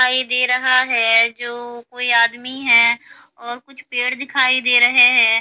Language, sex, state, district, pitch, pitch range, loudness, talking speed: Hindi, female, Haryana, Charkhi Dadri, 245 Hz, 235-255 Hz, -14 LUFS, 165 wpm